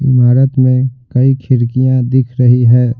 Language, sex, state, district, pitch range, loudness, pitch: Hindi, male, Bihar, Patna, 125-130 Hz, -11 LUFS, 130 Hz